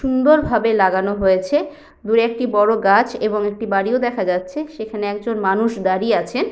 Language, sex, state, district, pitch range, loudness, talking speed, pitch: Bengali, female, West Bengal, Jhargram, 195-245 Hz, -18 LUFS, 155 wpm, 220 Hz